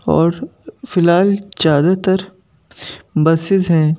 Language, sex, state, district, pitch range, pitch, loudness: Hindi, male, Madhya Pradesh, Bhopal, 165-190 Hz, 180 Hz, -15 LUFS